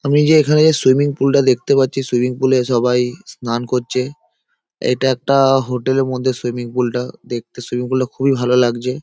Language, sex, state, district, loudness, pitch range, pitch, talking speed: Bengali, male, West Bengal, Paschim Medinipur, -16 LUFS, 125-135 Hz, 130 Hz, 195 wpm